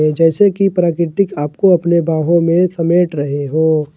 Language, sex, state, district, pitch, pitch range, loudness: Hindi, male, Jharkhand, Ranchi, 170 Hz, 155-180 Hz, -14 LUFS